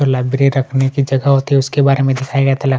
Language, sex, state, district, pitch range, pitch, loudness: Hindi, male, Chhattisgarh, Kabirdham, 135-140 Hz, 135 Hz, -14 LUFS